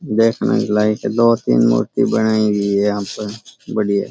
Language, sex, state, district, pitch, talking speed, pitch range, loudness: Rajasthani, male, Rajasthan, Churu, 105 Hz, 175 wpm, 100-110 Hz, -17 LUFS